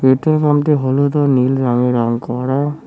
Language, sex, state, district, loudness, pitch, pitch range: Bengali, male, West Bengal, Cooch Behar, -15 LUFS, 135 Hz, 125-145 Hz